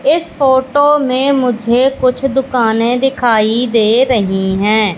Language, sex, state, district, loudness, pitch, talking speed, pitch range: Hindi, female, Madhya Pradesh, Katni, -12 LUFS, 250 Hz, 120 wpm, 225-270 Hz